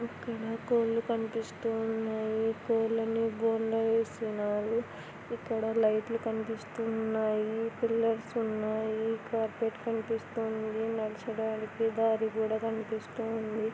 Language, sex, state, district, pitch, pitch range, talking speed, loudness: Telugu, female, Andhra Pradesh, Anantapur, 225 Hz, 220-225 Hz, 75 wpm, -32 LUFS